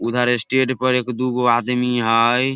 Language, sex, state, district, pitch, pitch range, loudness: Maithili, male, Bihar, Samastipur, 125 Hz, 120-125 Hz, -18 LUFS